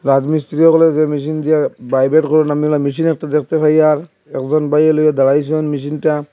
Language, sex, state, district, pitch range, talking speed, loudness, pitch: Bengali, male, Assam, Hailakandi, 145-155 Hz, 180 wpm, -14 LUFS, 150 Hz